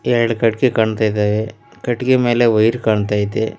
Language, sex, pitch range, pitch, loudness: Kannada, male, 110-120 Hz, 110 Hz, -16 LUFS